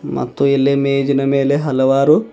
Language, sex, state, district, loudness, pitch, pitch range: Kannada, male, Karnataka, Bidar, -15 LUFS, 140 Hz, 135-140 Hz